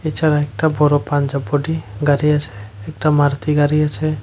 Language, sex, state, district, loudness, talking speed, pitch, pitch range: Bengali, male, Tripura, West Tripura, -17 LUFS, 155 wpm, 145 Hz, 140-150 Hz